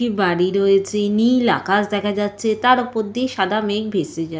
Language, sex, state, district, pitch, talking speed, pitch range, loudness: Bengali, female, West Bengal, Jalpaiguri, 205 Hz, 205 wpm, 195-225 Hz, -19 LUFS